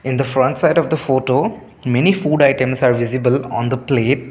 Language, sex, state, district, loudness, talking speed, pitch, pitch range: English, male, Assam, Kamrup Metropolitan, -16 LUFS, 210 wpm, 130 Hz, 130-150 Hz